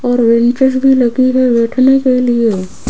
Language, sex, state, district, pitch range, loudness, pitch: Hindi, female, Rajasthan, Jaipur, 235-260 Hz, -11 LUFS, 245 Hz